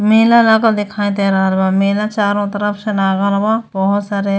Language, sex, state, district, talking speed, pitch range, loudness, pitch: Bhojpuri, female, Uttar Pradesh, Gorakhpur, 205 wpm, 195-215 Hz, -14 LUFS, 205 Hz